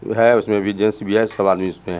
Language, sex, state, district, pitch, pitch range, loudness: Hindi, male, Bihar, Muzaffarpur, 105 Hz, 95-110 Hz, -18 LUFS